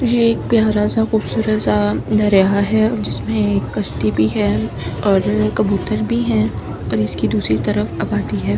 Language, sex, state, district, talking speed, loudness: Hindi, female, Delhi, New Delhi, 160 wpm, -17 LUFS